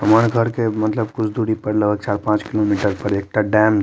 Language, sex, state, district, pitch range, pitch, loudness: Maithili, male, Bihar, Madhepura, 105-110 Hz, 105 Hz, -19 LUFS